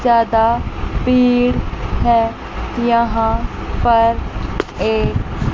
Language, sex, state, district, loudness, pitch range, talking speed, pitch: Hindi, female, Chandigarh, Chandigarh, -17 LUFS, 230-240 Hz, 65 wpm, 235 Hz